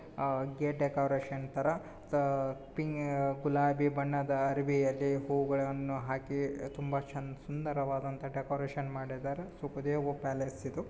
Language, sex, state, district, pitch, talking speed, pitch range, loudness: Kannada, male, Karnataka, Bijapur, 140 Hz, 95 wpm, 135-145 Hz, -34 LUFS